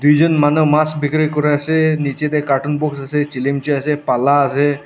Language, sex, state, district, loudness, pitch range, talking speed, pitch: Nagamese, male, Nagaland, Dimapur, -16 LUFS, 140-150 Hz, 185 wpm, 145 Hz